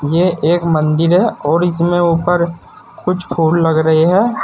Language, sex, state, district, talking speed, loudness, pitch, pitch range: Hindi, male, Uttar Pradesh, Saharanpur, 160 wpm, -14 LUFS, 170 Hz, 160-175 Hz